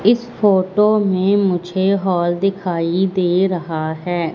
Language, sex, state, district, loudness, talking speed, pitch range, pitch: Hindi, female, Madhya Pradesh, Katni, -17 LUFS, 125 wpm, 175-195 Hz, 185 Hz